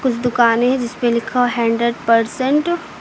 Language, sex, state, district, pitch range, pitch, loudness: Hindi, female, Uttar Pradesh, Lucknow, 235-255 Hz, 240 Hz, -17 LUFS